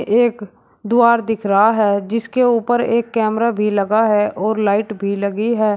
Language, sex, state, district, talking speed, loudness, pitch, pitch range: Hindi, male, Uttar Pradesh, Shamli, 175 wpm, -16 LUFS, 220 Hz, 210-235 Hz